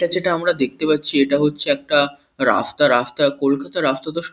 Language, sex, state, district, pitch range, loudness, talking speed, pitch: Bengali, male, West Bengal, Kolkata, 140-170 Hz, -18 LUFS, 180 wpm, 145 Hz